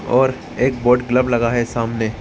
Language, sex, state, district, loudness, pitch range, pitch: Hindi, male, Maharashtra, Solapur, -18 LUFS, 115-125 Hz, 120 Hz